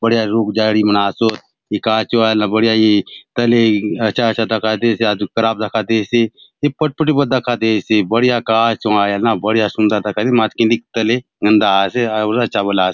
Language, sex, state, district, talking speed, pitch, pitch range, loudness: Halbi, male, Chhattisgarh, Bastar, 215 wpm, 110 Hz, 105-115 Hz, -15 LUFS